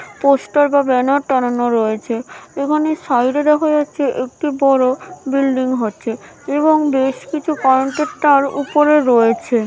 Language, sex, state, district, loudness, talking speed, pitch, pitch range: Bengali, female, West Bengal, Malda, -16 LUFS, 125 wpm, 275 Hz, 255-300 Hz